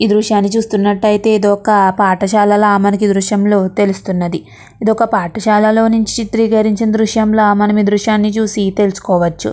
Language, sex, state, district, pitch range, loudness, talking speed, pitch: Telugu, female, Andhra Pradesh, Krishna, 200-220 Hz, -13 LUFS, 105 wpm, 210 Hz